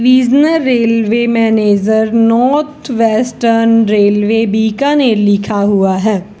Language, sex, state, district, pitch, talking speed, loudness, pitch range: Hindi, female, Rajasthan, Bikaner, 225 Hz, 95 wpm, -11 LUFS, 210-245 Hz